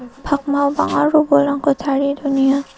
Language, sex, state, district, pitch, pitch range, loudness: Garo, female, Meghalaya, South Garo Hills, 280 Hz, 275-285 Hz, -17 LUFS